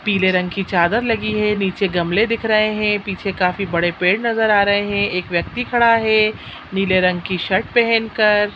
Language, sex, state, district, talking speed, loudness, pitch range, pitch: Hindi, female, Chhattisgarh, Raigarh, 195 wpm, -17 LUFS, 185-220 Hz, 205 Hz